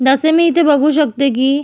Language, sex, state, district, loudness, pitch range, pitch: Marathi, female, Maharashtra, Solapur, -13 LUFS, 270-315 Hz, 285 Hz